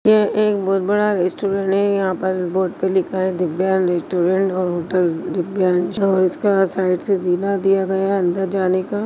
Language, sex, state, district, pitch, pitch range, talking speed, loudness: Hindi, female, Chhattisgarh, Bastar, 190 Hz, 180-195 Hz, 180 wpm, -18 LUFS